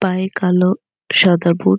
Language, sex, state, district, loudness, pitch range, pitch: Bengali, female, West Bengal, North 24 Parganas, -15 LUFS, 175-190 Hz, 180 Hz